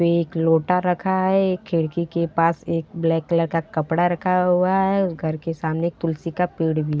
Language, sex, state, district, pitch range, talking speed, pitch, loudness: Hindi, female, Bihar, Gopalganj, 165-180 Hz, 230 wpm, 170 Hz, -21 LUFS